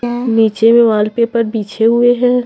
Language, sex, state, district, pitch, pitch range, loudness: Hindi, female, Chhattisgarh, Raipur, 230 Hz, 220-240 Hz, -12 LUFS